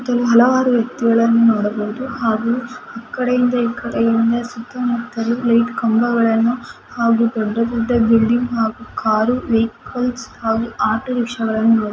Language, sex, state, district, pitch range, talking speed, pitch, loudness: Kannada, female, Karnataka, Mysore, 225-245 Hz, 125 wpm, 230 Hz, -17 LUFS